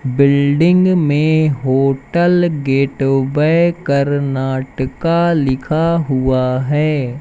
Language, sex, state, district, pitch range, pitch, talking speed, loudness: Hindi, male, Madhya Pradesh, Umaria, 135-165 Hz, 140 Hz, 65 wpm, -15 LUFS